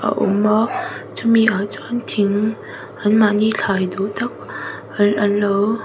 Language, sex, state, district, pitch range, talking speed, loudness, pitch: Mizo, female, Mizoram, Aizawl, 205-220 Hz, 145 wpm, -18 LUFS, 210 Hz